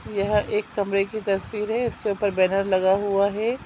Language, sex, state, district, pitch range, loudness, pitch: Hindi, female, Chhattisgarh, Sukma, 195-210 Hz, -23 LUFS, 205 Hz